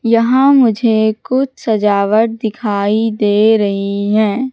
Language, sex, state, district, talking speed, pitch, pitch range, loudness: Hindi, female, Madhya Pradesh, Katni, 105 wpm, 220 Hz, 205-230 Hz, -13 LUFS